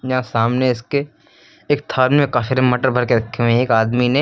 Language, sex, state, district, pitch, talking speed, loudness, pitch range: Hindi, male, Uttar Pradesh, Lucknow, 125 Hz, 225 wpm, -17 LUFS, 120-130 Hz